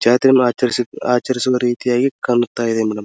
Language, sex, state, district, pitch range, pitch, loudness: Kannada, male, Karnataka, Dharwad, 120-125 Hz, 125 Hz, -17 LUFS